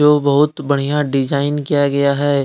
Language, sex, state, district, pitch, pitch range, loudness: Hindi, male, Jharkhand, Deoghar, 145 Hz, 140-145 Hz, -16 LUFS